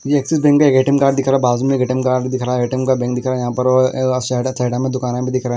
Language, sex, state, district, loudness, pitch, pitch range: Hindi, male, Bihar, West Champaran, -16 LUFS, 130 Hz, 125-135 Hz